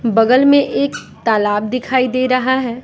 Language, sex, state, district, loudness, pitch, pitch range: Hindi, female, Bihar, West Champaran, -15 LUFS, 255 Hz, 230-260 Hz